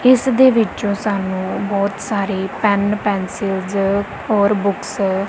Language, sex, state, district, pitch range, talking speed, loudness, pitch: Punjabi, female, Punjab, Kapurthala, 195-210 Hz, 115 wpm, -18 LUFS, 200 Hz